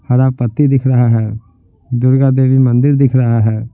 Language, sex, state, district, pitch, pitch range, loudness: Hindi, male, Bihar, Patna, 125 Hz, 115-130 Hz, -12 LUFS